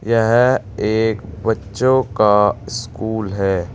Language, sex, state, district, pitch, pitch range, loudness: Hindi, male, Uttar Pradesh, Saharanpur, 110 Hz, 100-115 Hz, -17 LUFS